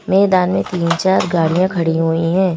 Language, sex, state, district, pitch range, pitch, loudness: Hindi, female, Madhya Pradesh, Bhopal, 165-190 Hz, 175 Hz, -15 LUFS